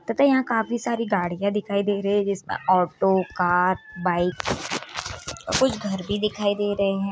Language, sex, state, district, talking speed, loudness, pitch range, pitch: Hindi, female, Bihar, Purnia, 185 wpm, -24 LUFS, 185-210 Hz, 200 Hz